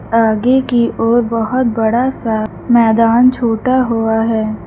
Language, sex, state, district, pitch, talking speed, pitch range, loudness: Hindi, male, Uttar Pradesh, Lucknow, 230 Hz, 130 wpm, 225-245 Hz, -13 LUFS